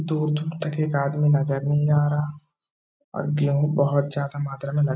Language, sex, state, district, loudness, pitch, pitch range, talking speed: Hindi, male, Uttar Pradesh, Etah, -23 LUFS, 145 Hz, 140-150 Hz, 205 wpm